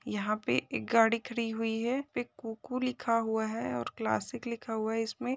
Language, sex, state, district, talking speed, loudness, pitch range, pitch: Hindi, male, Chhattisgarh, Balrampur, 200 wpm, -32 LUFS, 220-240 Hz, 225 Hz